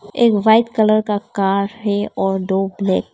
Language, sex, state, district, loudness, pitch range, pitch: Hindi, female, Arunachal Pradesh, Papum Pare, -17 LUFS, 195-215 Hz, 205 Hz